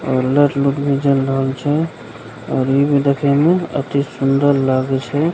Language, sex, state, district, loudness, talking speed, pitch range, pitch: Maithili, male, Bihar, Begusarai, -16 LUFS, 180 wpm, 135-145 Hz, 140 Hz